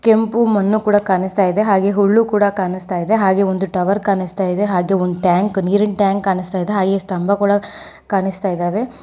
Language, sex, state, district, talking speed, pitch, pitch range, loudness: Kannada, female, Karnataka, Koppal, 165 wpm, 195 Hz, 190-205 Hz, -16 LUFS